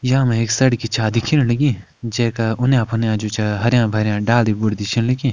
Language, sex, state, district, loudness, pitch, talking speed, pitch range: Kumaoni, male, Uttarakhand, Uttarkashi, -18 LUFS, 115 Hz, 205 wpm, 110-125 Hz